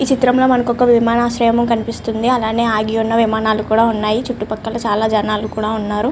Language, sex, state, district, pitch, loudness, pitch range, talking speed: Telugu, female, Andhra Pradesh, Srikakulam, 225 Hz, -16 LUFS, 215-240 Hz, 185 wpm